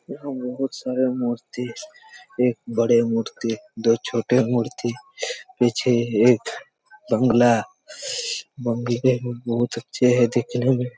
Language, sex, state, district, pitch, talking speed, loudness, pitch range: Hindi, male, Chhattisgarh, Raigarh, 125 Hz, 115 wpm, -22 LUFS, 120-145 Hz